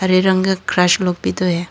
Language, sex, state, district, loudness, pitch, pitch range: Hindi, female, Tripura, Dhalai, -16 LUFS, 185 Hz, 180-190 Hz